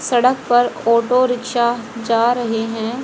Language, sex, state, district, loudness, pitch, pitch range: Hindi, female, Haryana, Jhajjar, -17 LUFS, 240 Hz, 230-250 Hz